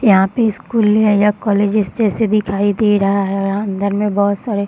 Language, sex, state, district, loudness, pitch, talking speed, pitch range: Hindi, female, Bihar, Samastipur, -15 LUFS, 205 Hz, 190 wpm, 200-215 Hz